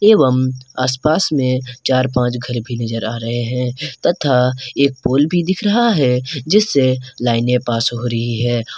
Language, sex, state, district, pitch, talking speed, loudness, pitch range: Hindi, male, Jharkhand, Garhwa, 130 Hz, 165 wpm, -17 LUFS, 120-145 Hz